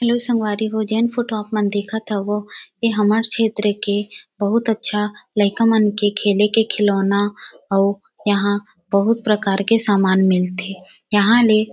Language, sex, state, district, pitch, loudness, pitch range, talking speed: Chhattisgarhi, female, Chhattisgarh, Rajnandgaon, 210 Hz, -18 LUFS, 200-220 Hz, 165 wpm